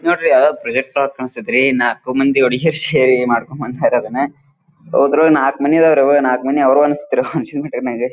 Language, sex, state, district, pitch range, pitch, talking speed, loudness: Kannada, male, Karnataka, Dharwad, 130-150 Hz, 140 Hz, 110 wpm, -15 LUFS